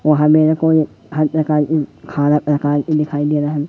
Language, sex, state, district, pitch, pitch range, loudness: Hindi, female, Madhya Pradesh, Katni, 150 Hz, 145-155 Hz, -16 LUFS